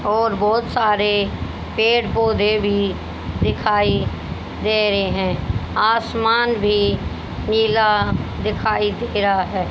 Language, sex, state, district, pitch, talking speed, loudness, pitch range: Hindi, female, Haryana, Rohtak, 215 Hz, 105 wpm, -19 LUFS, 205-225 Hz